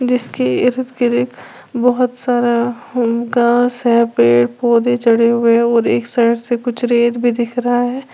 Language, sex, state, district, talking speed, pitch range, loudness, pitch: Hindi, female, Uttar Pradesh, Lalitpur, 155 wpm, 235-245 Hz, -15 LUFS, 240 Hz